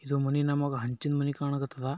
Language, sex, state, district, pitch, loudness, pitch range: Kannada, male, Karnataka, Bijapur, 140 Hz, -30 LUFS, 135-145 Hz